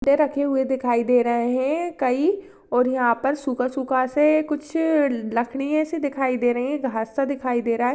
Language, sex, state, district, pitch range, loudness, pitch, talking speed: Hindi, female, Rajasthan, Churu, 245-290 Hz, -22 LUFS, 265 Hz, 195 wpm